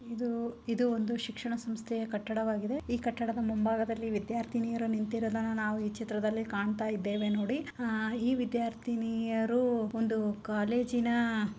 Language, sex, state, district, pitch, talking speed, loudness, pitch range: Kannada, female, Karnataka, Belgaum, 225 Hz, 110 wpm, -33 LUFS, 220-235 Hz